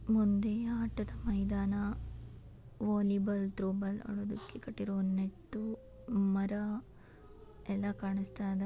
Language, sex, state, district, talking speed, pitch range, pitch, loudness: Kannada, female, Karnataka, Shimoga, 95 wpm, 195-215 Hz, 205 Hz, -36 LUFS